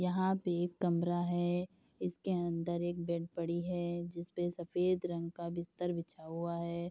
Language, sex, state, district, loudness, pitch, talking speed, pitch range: Hindi, female, Bihar, Saharsa, -37 LUFS, 175 Hz, 165 wpm, 170-175 Hz